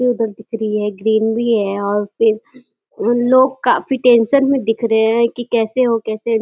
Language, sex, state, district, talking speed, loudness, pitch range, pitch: Hindi, female, Uttar Pradesh, Deoria, 215 wpm, -16 LUFS, 220-240 Hz, 225 Hz